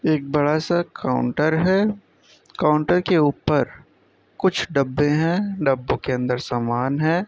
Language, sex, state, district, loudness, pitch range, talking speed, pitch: Hindi, male, Uttar Pradesh, Jyotiba Phule Nagar, -21 LUFS, 135-175 Hz, 130 wpm, 155 Hz